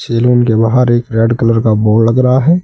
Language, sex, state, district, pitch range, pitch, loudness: Hindi, male, Uttar Pradesh, Saharanpur, 115-125 Hz, 115 Hz, -11 LUFS